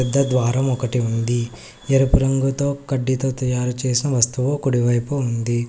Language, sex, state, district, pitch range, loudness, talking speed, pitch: Telugu, male, Telangana, Hyderabad, 120-135 Hz, -20 LUFS, 135 wpm, 130 Hz